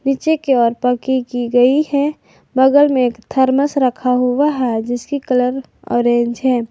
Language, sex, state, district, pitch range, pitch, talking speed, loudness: Hindi, female, Jharkhand, Garhwa, 245-275 Hz, 255 Hz, 150 wpm, -16 LUFS